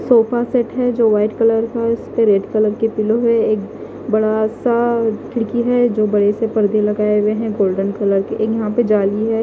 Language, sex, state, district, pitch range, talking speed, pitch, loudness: Hindi, female, Punjab, Fazilka, 210-230 Hz, 205 wpm, 220 Hz, -16 LUFS